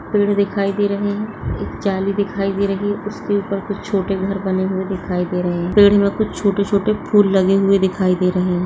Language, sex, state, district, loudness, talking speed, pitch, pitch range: Hindi, female, Uttarakhand, Uttarkashi, -18 LUFS, 240 wpm, 200 Hz, 190-205 Hz